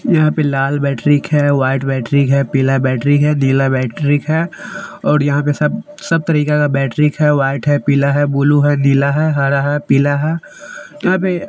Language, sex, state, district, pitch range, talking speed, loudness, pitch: Hindi, male, Haryana, Jhajjar, 140-150 Hz, 190 wpm, -14 LUFS, 145 Hz